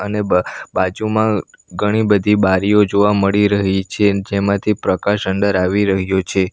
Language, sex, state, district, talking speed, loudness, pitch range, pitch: Gujarati, male, Gujarat, Valsad, 145 wpm, -16 LUFS, 95-105 Hz, 100 Hz